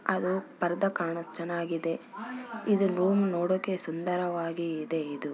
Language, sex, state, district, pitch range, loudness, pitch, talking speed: Kannada, female, Karnataka, Bellary, 165-190 Hz, -30 LUFS, 175 Hz, 115 wpm